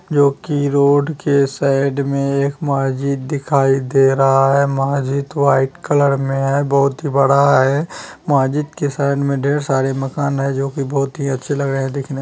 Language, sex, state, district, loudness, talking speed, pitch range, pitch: Hindi, male, Bihar, Kishanganj, -16 LUFS, 185 wpm, 135-140 Hz, 140 Hz